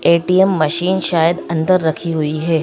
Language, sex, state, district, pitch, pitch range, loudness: Hindi, female, Madhya Pradesh, Bhopal, 165 Hz, 160-180 Hz, -16 LUFS